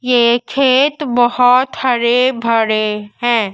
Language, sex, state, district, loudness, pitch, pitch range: Hindi, female, Madhya Pradesh, Dhar, -14 LUFS, 245 Hz, 230-255 Hz